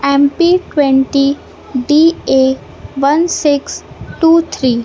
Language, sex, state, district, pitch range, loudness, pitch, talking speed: Hindi, male, Madhya Pradesh, Katni, 270-325 Hz, -12 LUFS, 280 Hz, 100 wpm